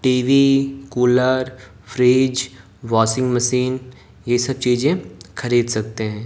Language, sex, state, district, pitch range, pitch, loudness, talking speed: Hindi, male, Haryana, Jhajjar, 115-130 Hz, 125 Hz, -18 LUFS, 105 wpm